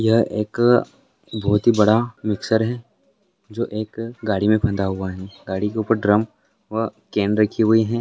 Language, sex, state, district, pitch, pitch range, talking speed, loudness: Maithili, male, Bihar, Purnia, 110 Hz, 105-115 Hz, 165 wpm, -20 LUFS